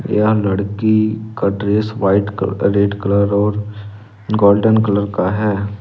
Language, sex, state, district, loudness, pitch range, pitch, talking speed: Hindi, male, Jharkhand, Ranchi, -16 LUFS, 100-105 Hz, 105 Hz, 135 wpm